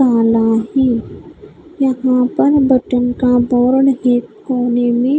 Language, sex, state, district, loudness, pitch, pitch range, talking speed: Hindi, female, Odisha, Khordha, -14 LUFS, 250 Hz, 245-265 Hz, 115 wpm